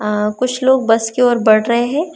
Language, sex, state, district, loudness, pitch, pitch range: Hindi, female, Maharashtra, Chandrapur, -14 LUFS, 240 Hz, 215-255 Hz